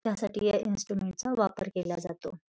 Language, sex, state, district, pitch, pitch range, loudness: Marathi, female, Maharashtra, Pune, 200 Hz, 185-210 Hz, -31 LUFS